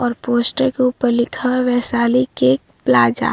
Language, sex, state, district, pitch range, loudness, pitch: Hindi, female, Bihar, Vaishali, 235-255 Hz, -17 LUFS, 245 Hz